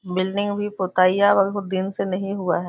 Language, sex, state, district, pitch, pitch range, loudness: Hindi, female, Bihar, Muzaffarpur, 195 Hz, 185-200 Hz, -21 LUFS